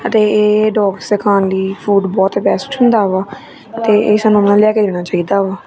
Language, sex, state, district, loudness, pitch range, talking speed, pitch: Punjabi, female, Punjab, Kapurthala, -13 LUFS, 195-215 Hz, 210 wpm, 205 Hz